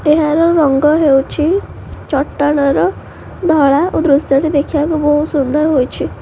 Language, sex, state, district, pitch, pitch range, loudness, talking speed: Odia, female, Odisha, Khordha, 295 Hz, 280-315 Hz, -13 LUFS, 115 wpm